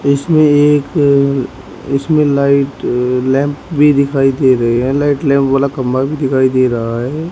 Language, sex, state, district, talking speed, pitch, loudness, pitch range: Hindi, male, Haryana, Rohtak, 155 wpm, 140 Hz, -13 LUFS, 130-145 Hz